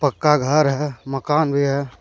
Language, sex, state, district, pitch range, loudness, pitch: Hindi, male, Jharkhand, Deoghar, 135-150 Hz, -19 LUFS, 140 Hz